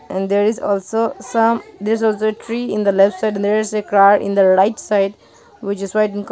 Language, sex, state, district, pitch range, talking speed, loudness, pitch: English, female, Nagaland, Dimapur, 200-215 Hz, 245 wpm, -17 LUFS, 210 Hz